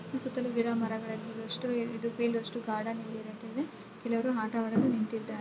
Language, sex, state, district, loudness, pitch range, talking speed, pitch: Kannada, female, Karnataka, Shimoga, -33 LUFS, 220-235 Hz, 120 wpm, 230 Hz